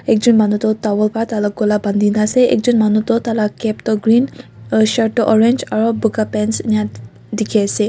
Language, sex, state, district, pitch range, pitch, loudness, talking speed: Nagamese, female, Nagaland, Kohima, 210-225 Hz, 215 Hz, -15 LUFS, 215 wpm